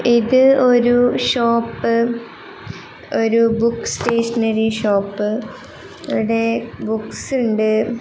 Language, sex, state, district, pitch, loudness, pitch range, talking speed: Malayalam, female, Kerala, Kasaragod, 230 Hz, -17 LUFS, 220-240 Hz, 75 wpm